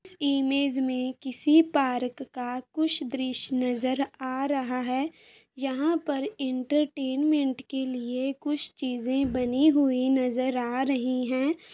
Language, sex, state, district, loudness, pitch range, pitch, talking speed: Hindi, female, Uttar Pradesh, Ghazipur, -27 LUFS, 255-285 Hz, 265 Hz, 130 wpm